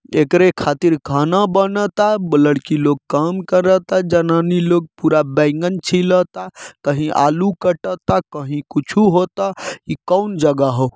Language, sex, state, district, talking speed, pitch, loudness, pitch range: Bhojpuri, male, Jharkhand, Sahebganj, 125 wpm, 170 Hz, -16 LUFS, 150-185 Hz